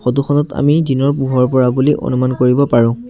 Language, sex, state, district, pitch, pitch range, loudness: Assamese, male, Assam, Sonitpur, 130 Hz, 125-140 Hz, -14 LUFS